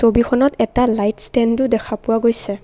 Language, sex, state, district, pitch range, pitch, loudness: Assamese, female, Assam, Kamrup Metropolitan, 215-245 Hz, 230 Hz, -17 LUFS